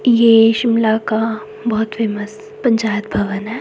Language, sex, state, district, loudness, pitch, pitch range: Hindi, female, Himachal Pradesh, Shimla, -16 LUFS, 220 Hz, 215-230 Hz